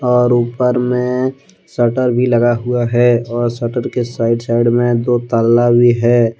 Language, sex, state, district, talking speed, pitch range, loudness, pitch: Hindi, male, Jharkhand, Deoghar, 170 wpm, 120-125 Hz, -14 LUFS, 120 Hz